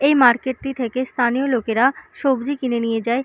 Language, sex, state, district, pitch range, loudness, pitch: Bengali, female, West Bengal, Purulia, 240-270 Hz, -20 LUFS, 255 Hz